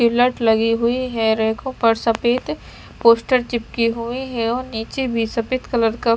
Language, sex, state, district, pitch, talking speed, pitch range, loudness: Hindi, female, Chandigarh, Chandigarh, 235 Hz, 155 wpm, 230-250 Hz, -19 LUFS